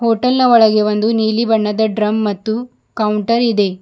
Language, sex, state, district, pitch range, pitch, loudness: Kannada, female, Karnataka, Bidar, 210-230 Hz, 220 Hz, -15 LUFS